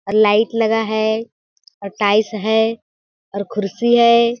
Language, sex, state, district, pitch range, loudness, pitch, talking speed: Hindi, female, Chhattisgarh, Balrampur, 210-230 Hz, -16 LUFS, 220 Hz, 95 wpm